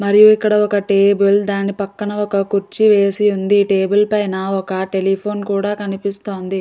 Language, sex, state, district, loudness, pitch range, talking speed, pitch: Telugu, female, Andhra Pradesh, Guntur, -16 LUFS, 195-205 Hz, 145 wpm, 200 Hz